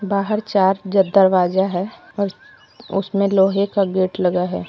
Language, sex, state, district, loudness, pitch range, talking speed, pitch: Hindi, female, Jharkhand, Deoghar, -18 LUFS, 185-200 Hz, 140 wpm, 195 Hz